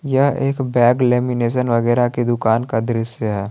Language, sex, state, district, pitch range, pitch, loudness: Hindi, male, Jharkhand, Palamu, 115-125 Hz, 120 Hz, -18 LUFS